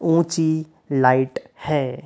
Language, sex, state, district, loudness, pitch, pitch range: Hindi, male, Uttar Pradesh, Hamirpur, -21 LUFS, 155 Hz, 130-160 Hz